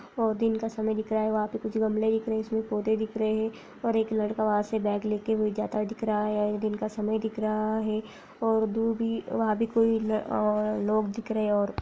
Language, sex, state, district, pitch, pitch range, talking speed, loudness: Hindi, female, Bihar, Lakhisarai, 220 Hz, 215-220 Hz, 260 wpm, -28 LUFS